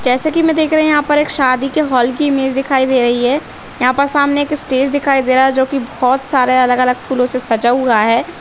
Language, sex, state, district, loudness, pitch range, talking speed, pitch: Hindi, female, Uttarakhand, Uttarkashi, -13 LUFS, 255-285 Hz, 285 wpm, 265 Hz